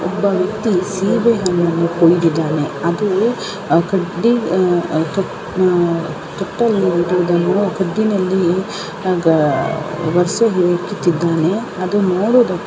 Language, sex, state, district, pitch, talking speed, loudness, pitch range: Kannada, female, Karnataka, Belgaum, 185 Hz, 90 wpm, -16 LUFS, 170-200 Hz